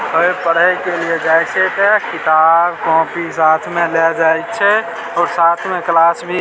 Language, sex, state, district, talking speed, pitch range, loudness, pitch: Maithili, male, Bihar, Samastipur, 180 wpm, 165-180 Hz, -14 LUFS, 170 Hz